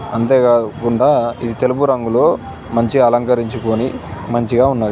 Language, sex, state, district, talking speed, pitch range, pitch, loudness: Telugu, male, Telangana, Nalgonda, 95 wpm, 115-125 Hz, 120 Hz, -15 LUFS